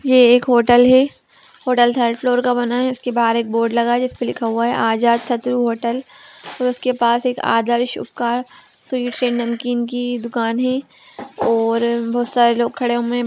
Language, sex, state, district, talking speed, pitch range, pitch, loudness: Magahi, female, Bihar, Gaya, 180 wpm, 235-250 Hz, 240 Hz, -17 LUFS